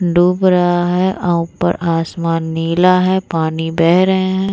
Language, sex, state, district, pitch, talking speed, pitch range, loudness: Hindi, female, Bihar, Vaishali, 175 Hz, 170 wpm, 165-185 Hz, -15 LUFS